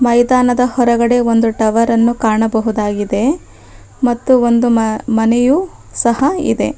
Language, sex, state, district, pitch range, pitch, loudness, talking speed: Kannada, female, Karnataka, Bangalore, 225-250 Hz, 235 Hz, -13 LUFS, 95 wpm